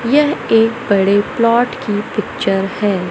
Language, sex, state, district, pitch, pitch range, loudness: Hindi, male, Madhya Pradesh, Katni, 220 Hz, 200-235 Hz, -15 LUFS